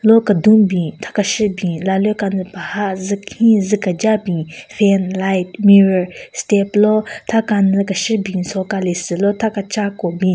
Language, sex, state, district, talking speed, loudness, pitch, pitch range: Rengma, female, Nagaland, Kohima, 175 wpm, -16 LUFS, 200 Hz, 190-210 Hz